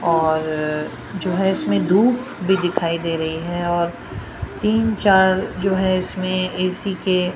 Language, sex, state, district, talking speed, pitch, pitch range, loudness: Hindi, female, Rajasthan, Jaipur, 145 wpm, 180 Hz, 165-190 Hz, -20 LUFS